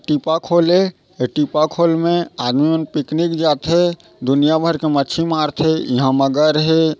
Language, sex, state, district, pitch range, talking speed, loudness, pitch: Chhattisgarhi, male, Chhattisgarh, Raigarh, 150-165 Hz, 145 wpm, -16 LUFS, 160 Hz